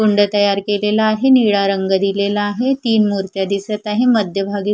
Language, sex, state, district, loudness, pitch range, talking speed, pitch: Marathi, female, Maharashtra, Mumbai Suburban, -16 LUFS, 200-215 Hz, 165 wpm, 205 Hz